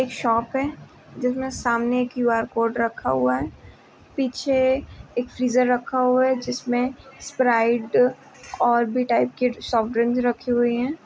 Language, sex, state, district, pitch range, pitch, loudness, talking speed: Hindi, female, Jharkhand, Sahebganj, 235-255 Hz, 245 Hz, -22 LUFS, 145 wpm